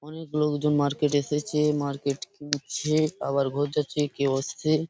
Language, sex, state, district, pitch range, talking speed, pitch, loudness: Bengali, male, West Bengal, Purulia, 145-150 Hz, 145 wpm, 150 Hz, -26 LUFS